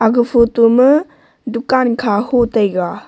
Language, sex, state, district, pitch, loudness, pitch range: Wancho, female, Arunachal Pradesh, Longding, 235 Hz, -13 LUFS, 230-255 Hz